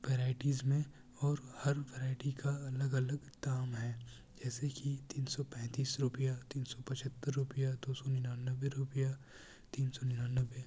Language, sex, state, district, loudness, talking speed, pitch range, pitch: Urdu, male, Bihar, Kishanganj, -39 LUFS, 155 wpm, 130-140 Hz, 135 Hz